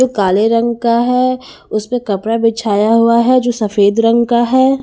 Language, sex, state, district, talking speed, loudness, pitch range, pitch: Hindi, female, Haryana, Charkhi Dadri, 175 wpm, -13 LUFS, 215-245 Hz, 230 Hz